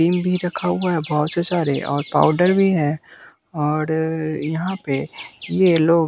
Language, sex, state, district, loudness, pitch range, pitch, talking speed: Hindi, male, Bihar, West Champaran, -20 LUFS, 150-180 Hz, 165 Hz, 160 wpm